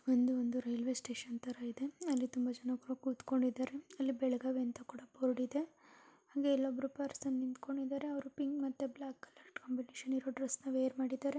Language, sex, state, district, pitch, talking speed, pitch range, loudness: Kannada, female, Karnataka, Belgaum, 265 Hz, 160 wpm, 255-275 Hz, -39 LUFS